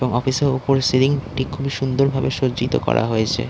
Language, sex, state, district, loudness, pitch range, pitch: Bengali, male, West Bengal, Dakshin Dinajpur, -20 LUFS, 125-135 Hz, 130 Hz